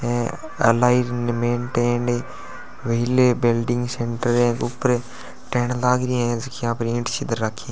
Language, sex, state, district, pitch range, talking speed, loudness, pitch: Hindi, male, Rajasthan, Churu, 115-125 Hz, 125 wpm, -21 LUFS, 120 Hz